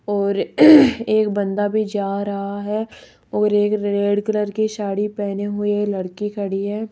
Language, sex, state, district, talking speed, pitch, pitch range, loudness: Hindi, female, Rajasthan, Jaipur, 155 wpm, 205 Hz, 200-210 Hz, -19 LUFS